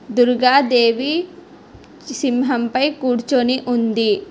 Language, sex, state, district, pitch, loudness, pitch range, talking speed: Telugu, female, Telangana, Hyderabad, 255 Hz, -17 LUFS, 245-280 Hz, 85 wpm